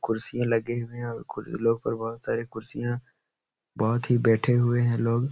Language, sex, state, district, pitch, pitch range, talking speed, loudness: Hindi, male, Uttar Pradesh, Etah, 115 Hz, 115-120 Hz, 160 wpm, -26 LUFS